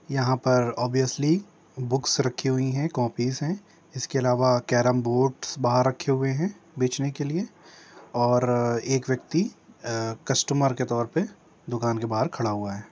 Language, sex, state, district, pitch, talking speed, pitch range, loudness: Hindi, male, Uttar Pradesh, Jyotiba Phule Nagar, 130 Hz, 155 wpm, 120-145 Hz, -25 LUFS